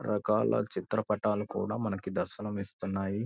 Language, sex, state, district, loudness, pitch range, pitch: Telugu, male, Andhra Pradesh, Guntur, -32 LUFS, 100-105 Hz, 105 Hz